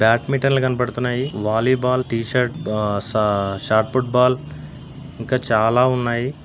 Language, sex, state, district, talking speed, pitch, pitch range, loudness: Telugu, male, Andhra Pradesh, Anantapur, 240 wpm, 125 Hz, 110-130 Hz, -19 LUFS